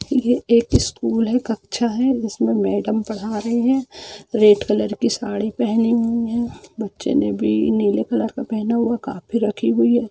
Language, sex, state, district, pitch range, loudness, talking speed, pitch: Hindi, female, Jharkhand, Jamtara, 205-235 Hz, -19 LUFS, 195 wpm, 225 Hz